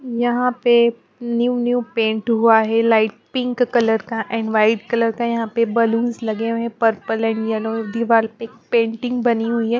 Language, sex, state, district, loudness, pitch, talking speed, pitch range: Hindi, female, Bihar, Patna, -19 LUFS, 230 Hz, 190 wpm, 225-235 Hz